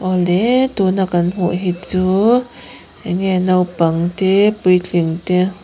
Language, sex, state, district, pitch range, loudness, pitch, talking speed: Mizo, female, Mizoram, Aizawl, 180-195 Hz, -16 LUFS, 185 Hz, 115 wpm